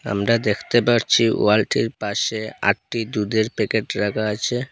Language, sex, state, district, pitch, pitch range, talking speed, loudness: Bengali, male, Assam, Hailakandi, 110 Hz, 105-115 Hz, 125 wpm, -20 LUFS